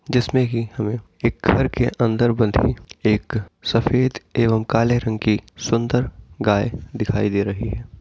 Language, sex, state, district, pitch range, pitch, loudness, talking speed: Hindi, male, Uttar Pradesh, Etah, 105-120 Hz, 115 Hz, -21 LUFS, 150 wpm